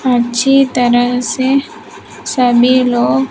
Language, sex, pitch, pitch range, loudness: Hindi, female, 250 Hz, 240-260 Hz, -12 LUFS